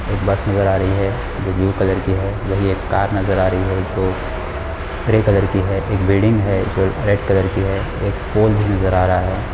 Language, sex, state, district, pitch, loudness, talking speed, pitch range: Hindi, male, Jharkhand, Sahebganj, 95 Hz, -18 LUFS, 240 wpm, 95-100 Hz